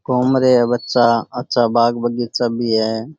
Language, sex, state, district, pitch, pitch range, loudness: Rajasthani, male, Rajasthan, Churu, 120 Hz, 115-125 Hz, -16 LUFS